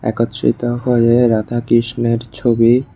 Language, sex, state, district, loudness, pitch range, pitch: Bengali, male, Tripura, West Tripura, -15 LUFS, 115-120 Hz, 120 Hz